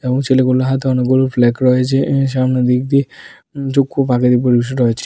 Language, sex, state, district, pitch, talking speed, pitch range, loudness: Bengali, male, Tripura, West Tripura, 130 Hz, 140 wpm, 125-135 Hz, -14 LUFS